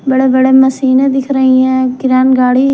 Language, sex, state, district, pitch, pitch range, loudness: Hindi, female, Punjab, Kapurthala, 260 Hz, 260-265 Hz, -10 LUFS